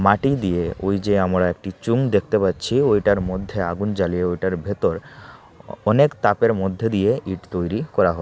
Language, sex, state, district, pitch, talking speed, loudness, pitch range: Bengali, male, Tripura, Unakoti, 100 Hz, 170 wpm, -21 LUFS, 90-105 Hz